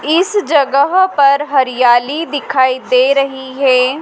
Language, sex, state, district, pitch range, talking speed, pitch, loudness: Hindi, female, Madhya Pradesh, Dhar, 260-295 Hz, 120 wpm, 275 Hz, -12 LUFS